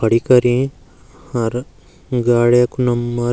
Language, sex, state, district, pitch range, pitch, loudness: Garhwali, male, Uttarakhand, Uttarkashi, 120-125 Hz, 120 Hz, -16 LUFS